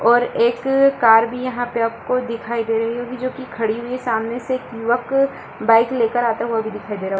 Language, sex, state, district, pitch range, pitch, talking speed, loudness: Hindi, female, Bihar, Supaul, 225-250 Hz, 235 Hz, 260 wpm, -19 LUFS